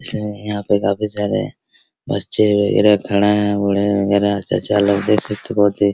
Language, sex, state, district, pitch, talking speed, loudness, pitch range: Hindi, male, Bihar, Araria, 105 Hz, 190 wpm, -17 LUFS, 100-105 Hz